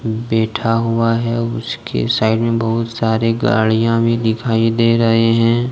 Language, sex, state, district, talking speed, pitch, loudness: Hindi, male, Jharkhand, Deoghar, 155 wpm, 115 Hz, -16 LUFS